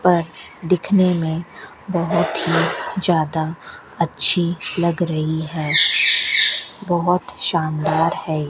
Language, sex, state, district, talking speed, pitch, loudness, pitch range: Hindi, female, Rajasthan, Bikaner, 90 wpm, 170 Hz, -18 LUFS, 160-175 Hz